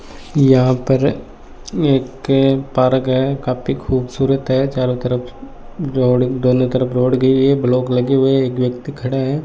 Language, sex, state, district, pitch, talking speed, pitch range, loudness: Hindi, male, Rajasthan, Bikaner, 130 Hz, 145 wpm, 125-135 Hz, -16 LUFS